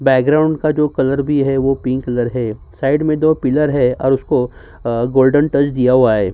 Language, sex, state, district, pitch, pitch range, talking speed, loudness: Hindi, male, Uttar Pradesh, Jyotiba Phule Nagar, 135 Hz, 125-145 Hz, 200 wpm, -15 LUFS